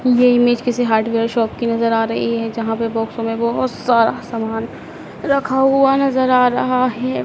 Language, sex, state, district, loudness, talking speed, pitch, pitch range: Hindi, female, Madhya Pradesh, Dhar, -17 LUFS, 190 wpm, 235 Hz, 230-255 Hz